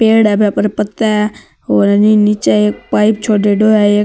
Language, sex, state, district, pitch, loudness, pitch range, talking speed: Marwari, male, Rajasthan, Nagaur, 210 Hz, -12 LUFS, 205-215 Hz, 235 wpm